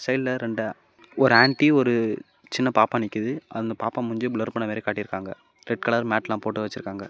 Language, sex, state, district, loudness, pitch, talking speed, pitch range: Tamil, male, Tamil Nadu, Namakkal, -24 LUFS, 115 Hz, 185 wpm, 110-120 Hz